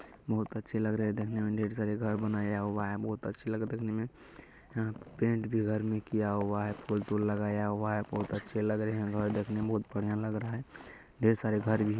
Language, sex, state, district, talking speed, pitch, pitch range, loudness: Hindi, male, Bihar, Begusarai, 255 wpm, 105 Hz, 105-110 Hz, -33 LUFS